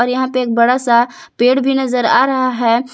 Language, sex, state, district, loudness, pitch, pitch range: Hindi, female, Jharkhand, Palamu, -14 LUFS, 255 Hz, 240-260 Hz